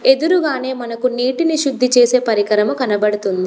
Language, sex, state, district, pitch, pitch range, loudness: Telugu, female, Telangana, Komaram Bheem, 250 Hz, 210-270 Hz, -16 LUFS